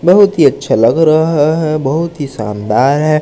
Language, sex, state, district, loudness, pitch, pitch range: Hindi, male, Madhya Pradesh, Katni, -12 LUFS, 155 Hz, 135-160 Hz